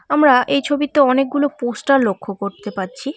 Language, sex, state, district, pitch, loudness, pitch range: Bengali, female, West Bengal, Cooch Behar, 270 Hz, -17 LUFS, 210-285 Hz